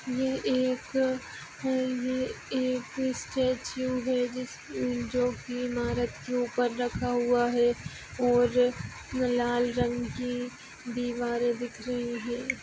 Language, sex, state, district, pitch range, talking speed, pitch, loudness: Hindi, female, Maharashtra, Nagpur, 245-255 Hz, 140 wpm, 245 Hz, -29 LUFS